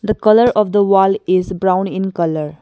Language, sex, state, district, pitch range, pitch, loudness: English, female, Arunachal Pradesh, Longding, 185-210 Hz, 190 Hz, -14 LUFS